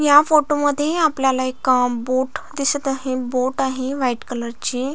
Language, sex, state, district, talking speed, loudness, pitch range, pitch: Marathi, female, Maharashtra, Solapur, 170 wpm, -20 LUFS, 255-290 Hz, 265 Hz